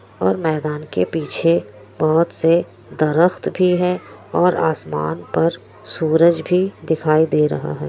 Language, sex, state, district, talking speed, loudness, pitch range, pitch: Hindi, female, Bihar, Kishanganj, 135 wpm, -18 LUFS, 105-170 Hz, 155 Hz